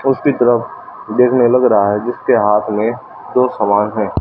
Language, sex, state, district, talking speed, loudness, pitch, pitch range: Hindi, male, Haryana, Rohtak, 185 wpm, -14 LUFS, 120 Hz, 105-125 Hz